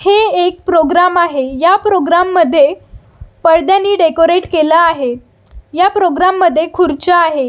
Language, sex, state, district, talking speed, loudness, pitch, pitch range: Marathi, female, Maharashtra, Solapur, 130 wpm, -11 LUFS, 345 Hz, 320-365 Hz